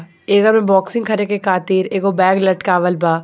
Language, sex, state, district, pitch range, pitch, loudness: Bhojpuri, female, Jharkhand, Palamu, 180-205 Hz, 190 Hz, -15 LUFS